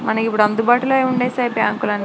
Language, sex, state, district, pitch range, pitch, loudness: Telugu, female, Andhra Pradesh, Srikakulam, 220-250 Hz, 240 Hz, -17 LUFS